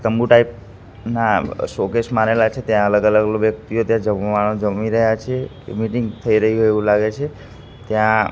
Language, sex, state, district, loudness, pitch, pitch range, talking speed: Gujarati, male, Gujarat, Gandhinagar, -18 LUFS, 110 Hz, 105-115 Hz, 165 wpm